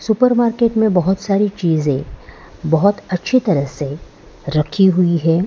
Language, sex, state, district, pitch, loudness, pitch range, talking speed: Hindi, male, Gujarat, Valsad, 180 Hz, -16 LUFS, 145-205 Hz, 140 wpm